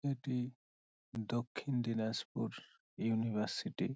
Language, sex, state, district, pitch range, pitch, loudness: Bengali, male, West Bengal, Dakshin Dinajpur, 110-125 Hz, 115 Hz, -39 LUFS